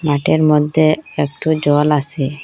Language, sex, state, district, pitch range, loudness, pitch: Bengali, female, Assam, Hailakandi, 145-155 Hz, -15 LUFS, 150 Hz